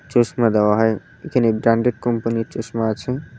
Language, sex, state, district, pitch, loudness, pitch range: Bengali, male, West Bengal, Cooch Behar, 115 Hz, -19 LUFS, 110-125 Hz